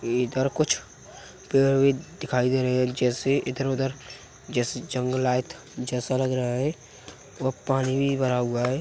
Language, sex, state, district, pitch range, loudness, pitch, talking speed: Hindi, male, Uttar Pradesh, Hamirpur, 125-135 Hz, -25 LUFS, 130 Hz, 155 wpm